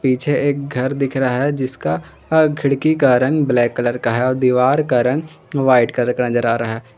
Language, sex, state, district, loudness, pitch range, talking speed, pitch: Hindi, male, Jharkhand, Garhwa, -17 LUFS, 125-140 Hz, 205 wpm, 130 Hz